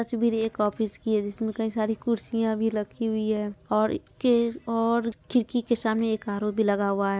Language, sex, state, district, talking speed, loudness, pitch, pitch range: Hindi, female, Bihar, Madhepura, 200 wpm, -26 LUFS, 220 Hz, 210-230 Hz